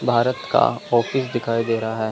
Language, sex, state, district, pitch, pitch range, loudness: Hindi, male, Chandigarh, Chandigarh, 120 Hz, 115-125 Hz, -21 LUFS